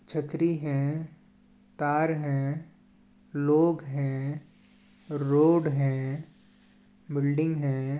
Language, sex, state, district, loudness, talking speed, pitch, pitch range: Chhattisgarhi, male, Chhattisgarh, Balrampur, -28 LUFS, 65 wpm, 155 Hz, 145-215 Hz